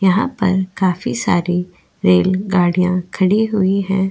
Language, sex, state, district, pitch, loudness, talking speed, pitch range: Hindi, female, Goa, North and South Goa, 185 Hz, -17 LUFS, 130 wpm, 180-195 Hz